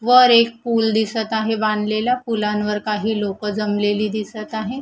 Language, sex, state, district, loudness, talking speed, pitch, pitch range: Marathi, female, Maharashtra, Gondia, -19 LUFS, 150 wpm, 220 Hz, 210-225 Hz